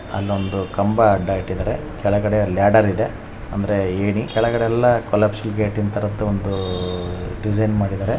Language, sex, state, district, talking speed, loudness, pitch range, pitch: Kannada, male, Karnataka, Raichur, 115 wpm, -20 LUFS, 95-110 Hz, 105 Hz